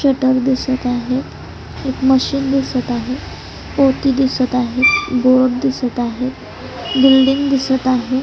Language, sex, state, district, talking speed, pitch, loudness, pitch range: Marathi, female, Maharashtra, Solapur, 115 wpm, 260 Hz, -16 LUFS, 255-270 Hz